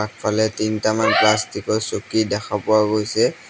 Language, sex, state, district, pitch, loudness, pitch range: Assamese, male, Assam, Sonitpur, 110 Hz, -19 LUFS, 105-110 Hz